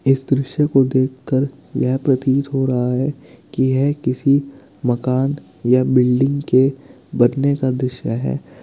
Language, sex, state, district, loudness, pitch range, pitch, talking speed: Hindi, male, Bihar, Kishanganj, -18 LUFS, 125-140 Hz, 130 Hz, 140 wpm